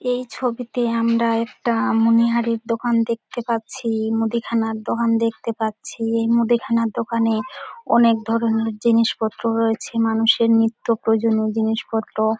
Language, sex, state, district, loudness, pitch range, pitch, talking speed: Bengali, female, West Bengal, Dakshin Dinajpur, -20 LUFS, 225-235 Hz, 230 Hz, 110 wpm